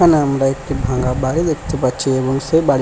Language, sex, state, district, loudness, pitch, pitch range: Bengali, male, West Bengal, Paschim Medinipur, -17 LUFS, 135 Hz, 130-150 Hz